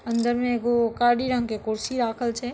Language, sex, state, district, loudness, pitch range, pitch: Maithili, female, Bihar, Darbhanga, -24 LUFS, 230-245 Hz, 240 Hz